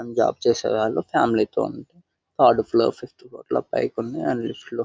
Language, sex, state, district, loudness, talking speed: Telugu, male, Telangana, Nalgonda, -22 LUFS, 200 wpm